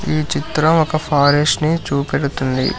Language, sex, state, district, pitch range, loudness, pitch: Telugu, male, Telangana, Hyderabad, 130-155 Hz, -16 LUFS, 145 Hz